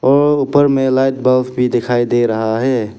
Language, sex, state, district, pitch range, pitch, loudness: Hindi, male, Arunachal Pradesh, Papum Pare, 120-135 Hz, 130 Hz, -14 LUFS